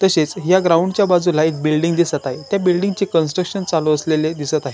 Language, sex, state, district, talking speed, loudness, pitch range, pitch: Marathi, male, Maharashtra, Chandrapur, 190 wpm, -17 LUFS, 155-185 Hz, 170 Hz